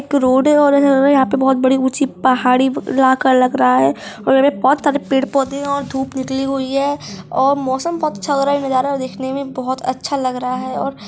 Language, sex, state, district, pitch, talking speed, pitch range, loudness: Hindi, female, Bihar, Jamui, 270 Hz, 240 wpm, 260-280 Hz, -16 LUFS